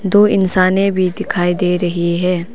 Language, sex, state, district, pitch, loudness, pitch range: Hindi, female, Arunachal Pradesh, Papum Pare, 185 Hz, -15 LUFS, 175-195 Hz